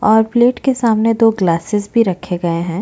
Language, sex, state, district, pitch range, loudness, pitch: Hindi, female, Chhattisgarh, Bastar, 180-230 Hz, -15 LUFS, 215 Hz